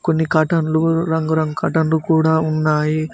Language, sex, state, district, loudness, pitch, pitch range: Telugu, male, Telangana, Mahabubabad, -17 LUFS, 160 Hz, 155-160 Hz